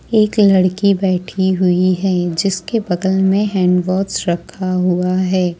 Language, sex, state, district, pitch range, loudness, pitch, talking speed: Hindi, female, Jharkhand, Ranchi, 180-195 Hz, -16 LUFS, 185 Hz, 140 wpm